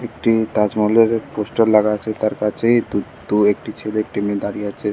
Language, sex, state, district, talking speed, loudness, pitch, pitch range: Bengali, male, West Bengal, Purulia, 195 wpm, -18 LUFS, 105 Hz, 105-110 Hz